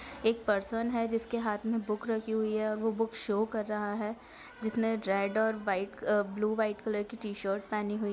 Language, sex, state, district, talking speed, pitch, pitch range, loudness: Hindi, female, Bihar, Gaya, 215 wpm, 215 Hz, 210-225 Hz, -32 LUFS